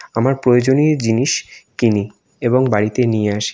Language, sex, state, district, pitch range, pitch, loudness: Bengali, male, West Bengal, North 24 Parganas, 110-130 Hz, 120 Hz, -16 LUFS